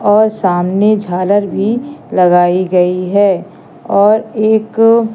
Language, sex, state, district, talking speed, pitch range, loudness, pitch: Hindi, female, Madhya Pradesh, Katni, 105 wpm, 185-220 Hz, -12 LUFS, 205 Hz